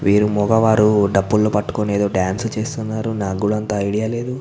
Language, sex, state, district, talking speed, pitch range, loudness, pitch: Telugu, male, Andhra Pradesh, Visakhapatnam, 175 wpm, 100-110 Hz, -18 LUFS, 105 Hz